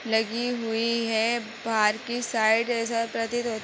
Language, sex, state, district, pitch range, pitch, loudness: Hindi, female, Uttar Pradesh, Hamirpur, 220-235 Hz, 230 Hz, -26 LUFS